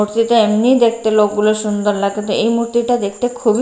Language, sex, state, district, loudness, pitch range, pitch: Bengali, female, Bihar, Katihar, -15 LUFS, 210-235 Hz, 220 Hz